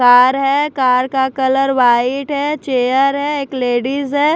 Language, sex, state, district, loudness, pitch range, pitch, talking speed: Hindi, female, Chhattisgarh, Raipur, -15 LUFS, 255-280 Hz, 270 Hz, 165 wpm